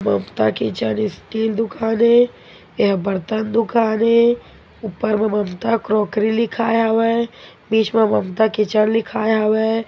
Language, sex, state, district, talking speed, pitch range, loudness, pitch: Hindi, male, Chhattisgarh, Korba, 140 wpm, 215-230 Hz, -18 LUFS, 220 Hz